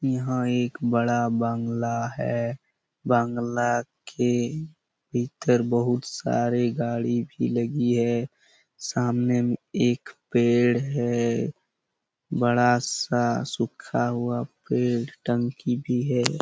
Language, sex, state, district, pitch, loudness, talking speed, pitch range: Hindi, male, Chhattisgarh, Bastar, 120 Hz, -25 LUFS, 100 wpm, 120-125 Hz